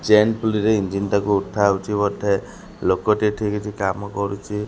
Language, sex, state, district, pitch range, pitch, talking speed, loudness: Odia, male, Odisha, Khordha, 100-105 Hz, 105 Hz, 130 wpm, -21 LUFS